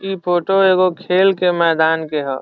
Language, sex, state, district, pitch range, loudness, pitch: Bhojpuri, male, Bihar, Saran, 165-190 Hz, -15 LUFS, 180 Hz